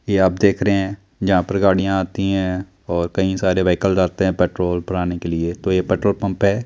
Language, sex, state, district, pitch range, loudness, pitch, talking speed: Hindi, male, Chandigarh, Chandigarh, 90-100 Hz, -19 LUFS, 95 Hz, 225 wpm